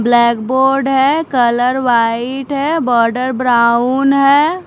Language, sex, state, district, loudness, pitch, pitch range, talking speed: Hindi, female, Punjab, Fazilka, -13 LUFS, 255 Hz, 240-275 Hz, 105 wpm